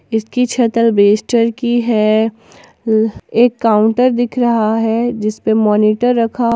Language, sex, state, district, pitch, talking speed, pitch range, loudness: Hindi, female, Jharkhand, Ranchi, 230 Hz, 135 wpm, 220-240 Hz, -14 LUFS